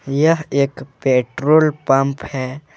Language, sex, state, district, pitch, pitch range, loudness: Hindi, male, Jharkhand, Deoghar, 140 Hz, 135-155 Hz, -17 LUFS